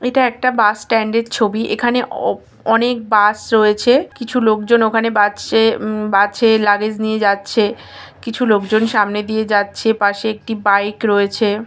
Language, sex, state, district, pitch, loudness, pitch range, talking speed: Bengali, female, West Bengal, Kolkata, 220 Hz, -15 LUFS, 210-230 Hz, 150 wpm